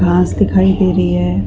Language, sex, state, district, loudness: Hindi, female, Chhattisgarh, Rajnandgaon, -13 LUFS